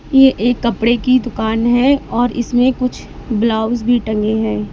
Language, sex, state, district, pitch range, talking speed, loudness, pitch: Hindi, female, Uttar Pradesh, Lalitpur, 220-250 Hz, 165 wpm, -15 LUFS, 240 Hz